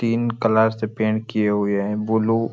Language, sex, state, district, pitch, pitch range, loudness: Hindi, male, Jharkhand, Sahebganj, 110 Hz, 105-115 Hz, -21 LUFS